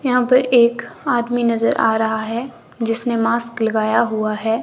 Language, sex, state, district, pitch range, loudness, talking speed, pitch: Hindi, female, Himachal Pradesh, Shimla, 225-240 Hz, -18 LUFS, 170 wpm, 230 Hz